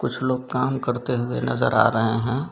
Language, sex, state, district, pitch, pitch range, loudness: Hindi, male, Jharkhand, Garhwa, 125 Hz, 115-130 Hz, -22 LUFS